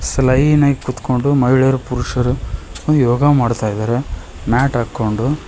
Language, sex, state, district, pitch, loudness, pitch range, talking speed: Kannada, male, Karnataka, Koppal, 125 Hz, -16 LUFS, 120-135 Hz, 120 wpm